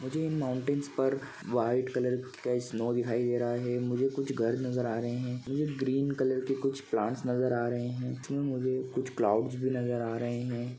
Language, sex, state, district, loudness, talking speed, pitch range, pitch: Hindi, male, Chhattisgarh, Bilaspur, -32 LUFS, 205 wpm, 120-135 Hz, 125 Hz